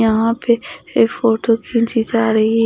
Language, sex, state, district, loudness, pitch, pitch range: Hindi, female, Odisha, Khordha, -16 LUFS, 225 Hz, 220-230 Hz